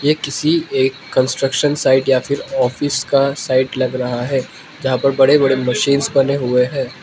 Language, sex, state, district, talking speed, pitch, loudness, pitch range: Hindi, male, Manipur, Imphal West, 180 wpm, 135 Hz, -16 LUFS, 130-140 Hz